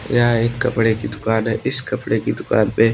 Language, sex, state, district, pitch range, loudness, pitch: Hindi, male, Maharashtra, Washim, 110-125 Hz, -19 LUFS, 115 Hz